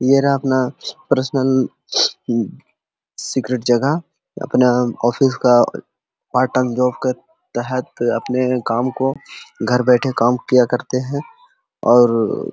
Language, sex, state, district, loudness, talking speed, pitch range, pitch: Hindi, male, Jharkhand, Sahebganj, -18 LUFS, 125 wpm, 120-135 Hz, 125 Hz